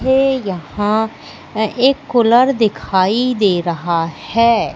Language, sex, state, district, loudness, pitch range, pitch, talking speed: Hindi, female, Madhya Pradesh, Katni, -15 LUFS, 185-245 Hz, 220 Hz, 115 wpm